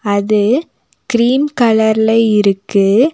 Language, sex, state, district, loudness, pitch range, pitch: Tamil, female, Tamil Nadu, Nilgiris, -13 LUFS, 205-240 Hz, 220 Hz